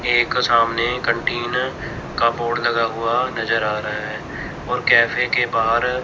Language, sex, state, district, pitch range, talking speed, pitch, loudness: Hindi, male, Chandigarh, Chandigarh, 115-120 Hz, 150 wpm, 115 Hz, -19 LUFS